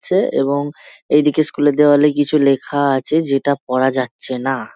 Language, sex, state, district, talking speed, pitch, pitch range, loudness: Bengali, male, West Bengal, Jalpaiguri, 175 wpm, 145 Hz, 135-150 Hz, -16 LUFS